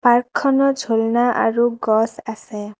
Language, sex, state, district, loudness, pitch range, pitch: Assamese, female, Assam, Kamrup Metropolitan, -18 LUFS, 220-245 Hz, 235 Hz